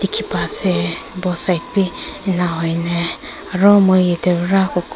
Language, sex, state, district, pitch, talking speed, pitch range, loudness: Nagamese, female, Nagaland, Kohima, 180 Hz, 135 wpm, 175-195 Hz, -16 LUFS